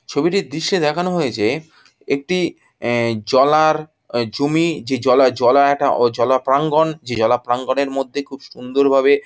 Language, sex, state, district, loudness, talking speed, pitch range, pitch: Bengali, female, West Bengal, Jhargram, -17 LUFS, 155 wpm, 125-155 Hz, 140 Hz